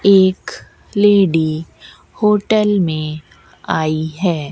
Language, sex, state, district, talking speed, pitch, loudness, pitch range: Hindi, female, Rajasthan, Bikaner, 80 wpm, 165 Hz, -16 LUFS, 155-200 Hz